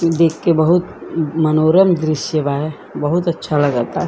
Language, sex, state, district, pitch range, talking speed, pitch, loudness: Bhojpuri, female, Uttar Pradesh, Gorakhpur, 155-170 Hz, 130 wpm, 160 Hz, -16 LUFS